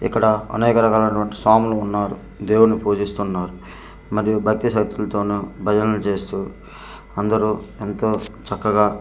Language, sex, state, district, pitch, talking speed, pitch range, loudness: Telugu, male, Andhra Pradesh, Manyam, 105 Hz, 105 wpm, 100-110 Hz, -20 LUFS